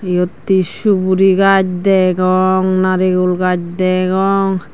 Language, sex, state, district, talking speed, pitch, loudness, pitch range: Chakma, female, Tripura, Dhalai, 100 wpm, 185 Hz, -14 LUFS, 185-190 Hz